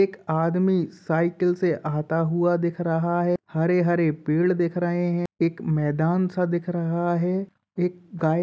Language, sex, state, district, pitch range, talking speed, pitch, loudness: Hindi, male, Uttar Pradesh, Jalaun, 165-180 Hz, 165 wpm, 175 Hz, -24 LUFS